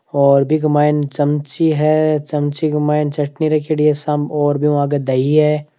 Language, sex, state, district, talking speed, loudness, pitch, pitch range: Hindi, male, Rajasthan, Nagaur, 175 wpm, -16 LUFS, 150 Hz, 145-150 Hz